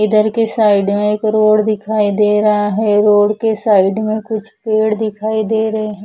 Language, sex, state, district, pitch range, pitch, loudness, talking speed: Hindi, female, Odisha, Khordha, 210-220 Hz, 215 Hz, -14 LUFS, 200 wpm